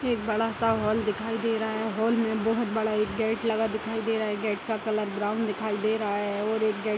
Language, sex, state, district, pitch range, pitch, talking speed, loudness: Hindi, female, Bihar, Darbhanga, 215-225 Hz, 220 Hz, 275 wpm, -27 LUFS